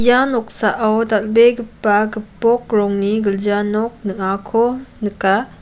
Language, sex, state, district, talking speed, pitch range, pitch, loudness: Garo, female, Meghalaya, West Garo Hills, 95 wpm, 205-230 Hz, 215 Hz, -17 LUFS